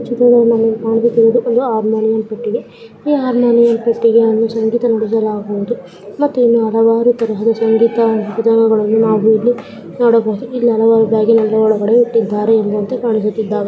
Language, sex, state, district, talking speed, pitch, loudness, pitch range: Kannada, female, Karnataka, Gulbarga, 90 wpm, 225 Hz, -13 LUFS, 220-235 Hz